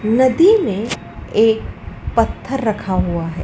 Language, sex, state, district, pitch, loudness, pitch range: Hindi, female, Madhya Pradesh, Dhar, 225 Hz, -17 LUFS, 210-265 Hz